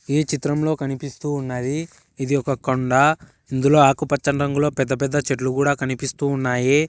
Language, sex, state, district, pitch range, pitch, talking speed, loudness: Telugu, male, Telangana, Hyderabad, 135-145 Hz, 140 Hz, 140 wpm, -21 LUFS